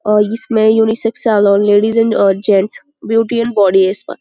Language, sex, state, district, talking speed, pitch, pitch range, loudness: Hindi, female, Uttar Pradesh, Budaun, 185 wpm, 220 Hz, 205-225 Hz, -13 LUFS